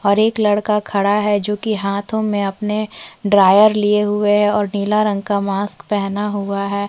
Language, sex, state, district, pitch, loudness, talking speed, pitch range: Hindi, female, Chhattisgarh, Korba, 205 Hz, -17 LUFS, 190 wpm, 200-210 Hz